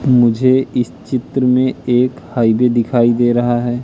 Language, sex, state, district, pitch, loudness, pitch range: Hindi, male, Madhya Pradesh, Katni, 125 Hz, -15 LUFS, 120-130 Hz